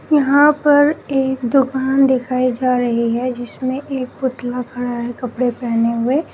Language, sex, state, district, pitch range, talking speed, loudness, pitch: Hindi, female, Uttar Pradesh, Shamli, 245-270 Hz, 150 wpm, -17 LUFS, 255 Hz